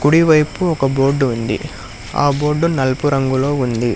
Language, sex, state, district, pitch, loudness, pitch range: Telugu, male, Telangana, Hyderabad, 135 Hz, -16 LUFS, 125-150 Hz